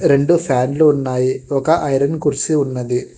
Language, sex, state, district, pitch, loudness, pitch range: Telugu, male, Telangana, Hyderabad, 140 Hz, -16 LUFS, 130-150 Hz